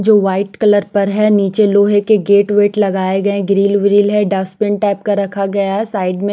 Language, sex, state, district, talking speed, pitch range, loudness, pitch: Hindi, female, Chandigarh, Chandigarh, 220 wpm, 195-205 Hz, -13 LUFS, 200 Hz